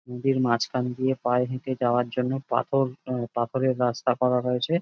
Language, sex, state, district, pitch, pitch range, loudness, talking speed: Bengali, male, West Bengal, Jhargram, 125 Hz, 125-130 Hz, -25 LUFS, 160 wpm